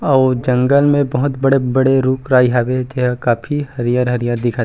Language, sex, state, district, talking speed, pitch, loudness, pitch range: Chhattisgarhi, male, Chhattisgarh, Rajnandgaon, 180 wpm, 130 Hz, -15 LUFS, 125-135 Hz